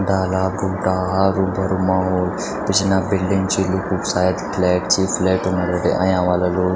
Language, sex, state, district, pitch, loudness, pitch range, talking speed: Garhwali, male, Uttarakhand, Tehri Garhwal, 95 Hz, -19 LUFS, 90-95 Hz, 150 wpm